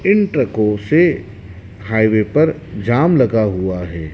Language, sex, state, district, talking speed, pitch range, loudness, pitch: Hindi, male, Madhya Pradesh, Dhar, 130 wpm, 100-155 Hz, -16 LUFS, 110 Hz